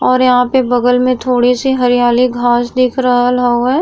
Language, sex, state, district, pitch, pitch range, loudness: Bhojpuri, female, Uttar Pradesh, Gorakhpur, 250 Hz, 245-255 Hz, -12 LUFS